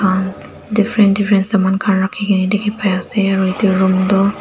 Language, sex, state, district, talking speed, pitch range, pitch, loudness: Nagamese, female, Nagaland, Dimapur, 135 wpm, 190-205 Hz, 195 Hz, -15 LUFS